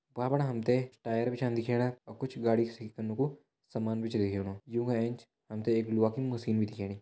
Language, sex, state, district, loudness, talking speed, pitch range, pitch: Hindi, male, Uttarakhand, Tehri Garhwal, -33 LUFS, 250 wpm, 110-125 Hz, 115 Hz